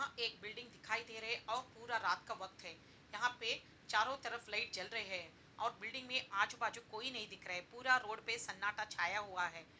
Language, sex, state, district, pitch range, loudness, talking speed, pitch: Hindi, female, Bihar, Gopalganj, 200-235 Hz, -41 LUFS, 230 wpm, 220 Hz